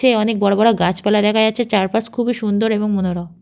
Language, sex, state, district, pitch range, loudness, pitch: Bengali, female, West Bengal, Jhargram, 200-225 Hz, -17 LUFS, 210 Hz